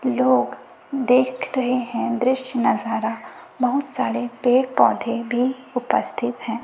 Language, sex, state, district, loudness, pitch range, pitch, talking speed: Hindi, female, Chhattisgarh, Raipur, -21 LUFS, 245-260 Hz, 255 Hz, 115 wpm